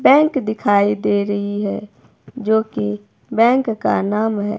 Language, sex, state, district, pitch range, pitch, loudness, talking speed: Hindi, female, Himachal Pradesh, Shimla, 200-225 Hz, 210 Hz, -18 LUFS, 145 wpm